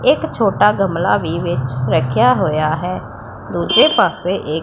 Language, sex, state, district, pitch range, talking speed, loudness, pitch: Punjabi, female, Punjab, Pathankot, 130-180 Hz, 140 wpm, -16 LUFS, 155 Hz